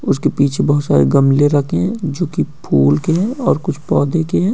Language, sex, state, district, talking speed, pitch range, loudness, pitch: Hindi, male, Uttar Pradesh, Hamirpur, 210 wpm, 140-175 Hz, -15 LUFS, 145 Hz